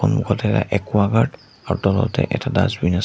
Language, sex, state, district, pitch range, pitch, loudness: Assamese, male, Assam, Sonitpur, 100-115 Hz, 105 Hz, -20 LUFS